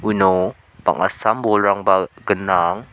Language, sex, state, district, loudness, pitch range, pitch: Garo, male, Meghalaya, South Garo Hills, -18 LUFS, 95-105 Hz, 100 Hz